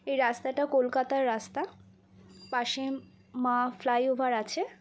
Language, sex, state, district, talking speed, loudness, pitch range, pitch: Bengali, female, West Bengal, Kolkata, 125 wpm, -30 LUFS, 225-265 Hz, 250 Hz